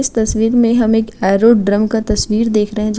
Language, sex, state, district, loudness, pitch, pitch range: Hindi, female, Uttar Pradesh, Gorakhpur, -14 LUFS, 220 Hz, 215-230 Hz